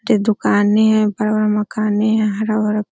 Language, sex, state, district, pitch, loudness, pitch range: Hindi, female, Uttar Pradesh, Hamirpur, 215 Hz, -16 LUFS, 210-215 Hz